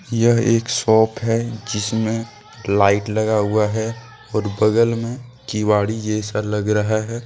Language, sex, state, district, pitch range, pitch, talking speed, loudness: Hindi, male, Jharkhand, Deoghar, 105-115 Hz, 110 Hz, 140 wpm, -19 LUFS